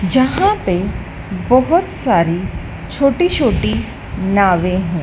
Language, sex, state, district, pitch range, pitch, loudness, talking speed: Hindi, female, Madhya Pradesh, Dhar, 180-295 Hz, 200 Hz, -16 LUFS, 95 wpm